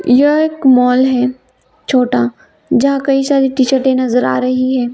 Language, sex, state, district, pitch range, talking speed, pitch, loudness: Hindi, female, Bihar, Gaya, 250-270 Hz, 160 wpm, 260 Hz, -13 LUFS